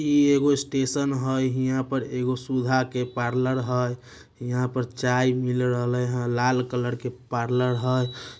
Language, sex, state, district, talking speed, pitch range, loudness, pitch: Magahi, male, Bihar, Samastipur, 155 wpm, 125-130 Hz, -25 LUFS, 125 Hz